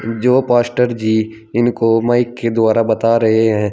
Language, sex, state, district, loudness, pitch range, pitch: Hindi, male, Uttar Pradesh, Saharanpur, -15 LUFS, 110-120 Hz, 115 Hz